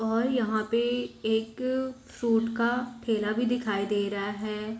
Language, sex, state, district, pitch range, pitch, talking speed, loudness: Hindi, female, Bihar, East Champaran, 215-245 Hz, 225 Hz, 150 wpm, -28 LUFS